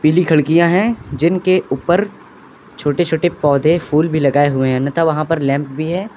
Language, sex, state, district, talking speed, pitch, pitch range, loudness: Hindi, male, Uttar Pradesh, Lucknow, 185 wpm, 160 Hz, 145-175 Hz, -15 LUFS